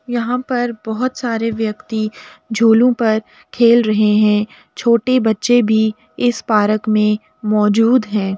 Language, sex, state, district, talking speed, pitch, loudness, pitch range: Hindi, female, Uttar Pradesh, Jalaun, 135 wpm, 225 Hz, -16 LUFS, 215-240 Hz